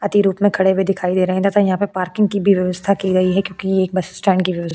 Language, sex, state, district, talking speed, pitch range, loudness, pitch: Hindi, female, Goa, North and South Goa, 305 wpm, 185-200 Hz, -17 LUFS, 190 Hz